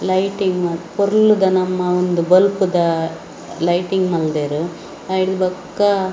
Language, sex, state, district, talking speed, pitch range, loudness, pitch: Tulu, female, Karnataka, Dakshina Kannada, 110 wpm, 170-190 Hz, -17 LUFS, 185 Hz